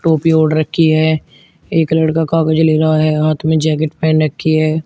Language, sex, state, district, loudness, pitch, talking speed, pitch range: Hindi, male, Uttar Pradesh, Shamli, -14 LUFS, 155 Hz, 195 wpm, 155-160 Hz